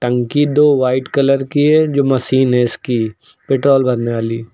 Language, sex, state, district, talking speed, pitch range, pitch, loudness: Hindi, male, Uttar Pradesh, Lucknow, 170 wpm, 120-140 Hz, 130 Hz, -15 LUFS